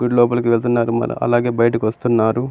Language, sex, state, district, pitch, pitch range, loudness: Telugu, male, Andhra Pradesh, Anantapur, 120 Hz, 115-120 Hz, -17 LUFS